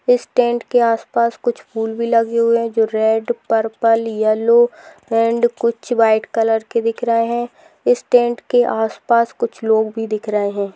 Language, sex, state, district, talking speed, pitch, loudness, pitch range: Hindi, female, Bihar, Begusarai, 180 wpm, 230 Hz, -17 LUFS, 225-240 Hz